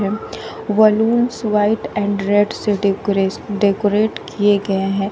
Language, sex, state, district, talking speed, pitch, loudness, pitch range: Hindi, female, Uttar Pradesh, Shamli, 115 wpm, 205 Hz, -17 LUFS, 200-215 Hz